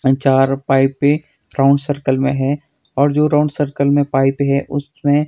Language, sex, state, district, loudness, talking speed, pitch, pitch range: Hindi, male, Himachal Pradesh, Shimla, -16 LUFS, 160 wpm, 140 Hz, 135-145 Hz